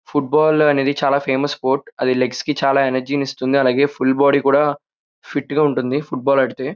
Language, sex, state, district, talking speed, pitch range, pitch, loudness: Telugu, male, Andhra Pradesh, Krishna, 175 wpm, 130-145 Hz, 140 Hz, -17 LUFS